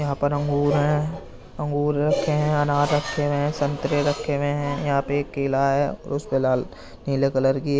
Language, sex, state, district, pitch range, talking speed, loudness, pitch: Hindi, male, Uttar Pradesh, Jyotiba Phule Nagar, 140-145 Hz, 200 wpm, -23 LUFS, 145 Hz